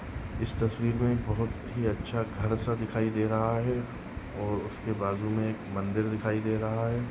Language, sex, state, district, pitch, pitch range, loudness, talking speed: Hindi, male, Goa, North and South Goa, 110 Hz, 105-115 Hz, -31 LUFS, 195 wpm